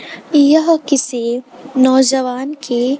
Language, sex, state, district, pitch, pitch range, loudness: Hindi, female, Bihar, West Champaran, 265 Hz, 250-285 Hz, -14 LUFS